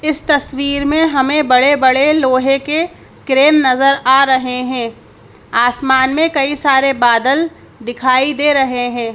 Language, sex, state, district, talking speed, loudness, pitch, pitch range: Hindi, female, Madhya Pradesh, Bhopal, 140 wpm, -13 LUFS, 270 Hz, 255-290 Hz